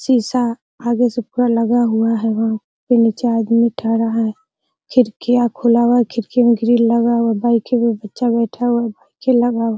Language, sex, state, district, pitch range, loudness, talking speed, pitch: Hindi, female, Bihar, Araria, 230-245 Hz, -16 LUFS, 190 wpm, 235 Hz